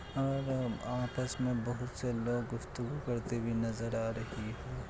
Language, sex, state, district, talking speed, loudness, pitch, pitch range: Hindi, male, Bihar, Kishanganj, 170 wpm, -36 LUFS, 120 Hz, 115-125 Hz